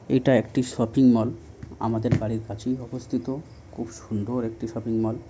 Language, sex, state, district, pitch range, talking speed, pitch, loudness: Bengali, male, West Bengal, North 24 Parganas, 110-125 Hz, 135 wpm, 115 Hz, -25 LUFS